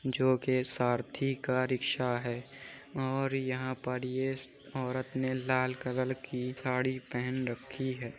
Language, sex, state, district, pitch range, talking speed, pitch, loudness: Hindi, male, Uttar Pradesh, Muzaffarnagar, 125-130 Hz, 140 wpm, 130 Hz, -33 LUFS